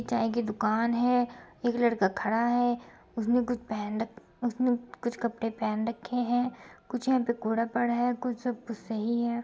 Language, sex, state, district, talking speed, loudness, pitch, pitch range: Hindi, female, Uttar Pradesh, Muzaffarnagar, 185 wpm, -29 LUFS, 235 Hz, 225-245 Hz